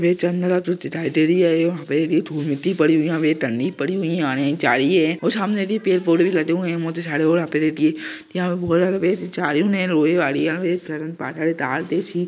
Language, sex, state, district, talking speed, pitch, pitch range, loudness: Hindi, male, Jharkhand, Jamtara, 135 wpm, 170 Hz, 155-180 Hz, -20 LUFS